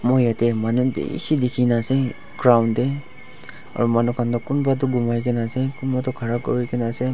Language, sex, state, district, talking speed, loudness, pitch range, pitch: Nagamese, male, Nagaland, Dimapur, 185 wpm, -21 LUFS, 120-130 Hz, 125 Hz